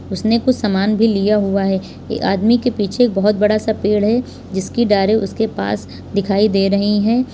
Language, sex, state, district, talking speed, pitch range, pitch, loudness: Hindi, female, Uttar Pradesh, Lalitpur, 205 wpm, 195-220 Hz, 210 Hz, -16 LUFS